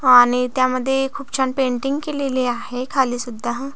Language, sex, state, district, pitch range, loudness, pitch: Marathi, female, Maharashtra, Aurangabad, 245-270 Hz, -20 LUFS, 255 Hz